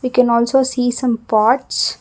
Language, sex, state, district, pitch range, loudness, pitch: English, female, Karnataka, Bangalore, 235-255 Hz, -16 LUFS, 245 Hz